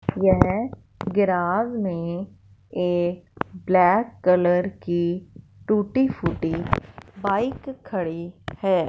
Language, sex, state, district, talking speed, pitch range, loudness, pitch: Hindi, female, Punjab, Fazilka, 80 wpm, 175-200 Hz, -23 LUFS, 180 Hz